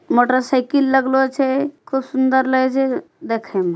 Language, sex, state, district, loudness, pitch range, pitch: Angika, female, Bihar, Bhagalpur, -18 LUFS, 255-270 Hz, 265 Hz